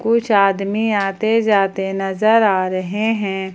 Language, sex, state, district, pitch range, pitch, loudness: Hindi, female, Jharkhand, Ranchi, 195-220 Hz, 200 Hz, -17 LUFS